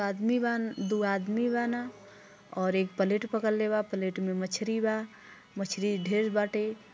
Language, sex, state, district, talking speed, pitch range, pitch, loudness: Bhojpuri, female, Uttar Pradesh, Gorakhpur, 155 wpm, 195-220 Hz, 210 Hz, -30 LUFS